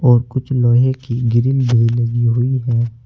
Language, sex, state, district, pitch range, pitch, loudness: Hindi, male, Uttar Pradesh, Saharanpur, 120-130 Hz, 120 Hz, -16 LUFS